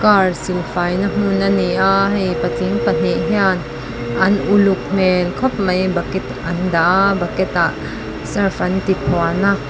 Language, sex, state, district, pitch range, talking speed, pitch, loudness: Mizo, female, Mizoram, Aizawl, 165-195 Hz, 165 wpm, 185 Hz, -17 LUFS